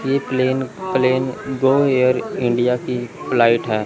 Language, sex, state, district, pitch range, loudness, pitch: Hindi, male, Chandigarh, Chandigarh, 120-135 Hz, -18 LUFS, 130 Hz